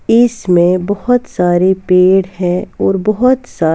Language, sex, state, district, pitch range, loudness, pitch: Hindi, female, Bihar, West Champaran, 180-230 Hz, -12 LUFS, 190 Hz